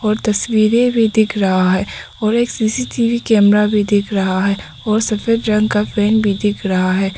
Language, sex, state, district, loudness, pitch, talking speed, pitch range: Hindi, female, Arunachal Pradesh, Papum Pare, -15 LUFS, 215 Hz, 190 wpm, 200-220 Hz